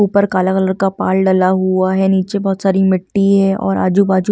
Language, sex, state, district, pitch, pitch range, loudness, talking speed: Hindi, female, Delhi, New Delhi, 190 Hz, 185-195 Hz, -14 LUFS, 250 wpm